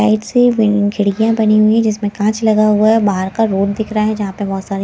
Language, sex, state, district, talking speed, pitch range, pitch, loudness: Hindi, female, Himachal Pradesh, Shimla, 275 wpm, 205-220 Hz, 215 Hz, -14 LUFS